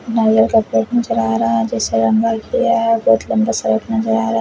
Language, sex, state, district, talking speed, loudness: Hindi, male, Odisha, Khordha, 95 wpm, -16 LUFS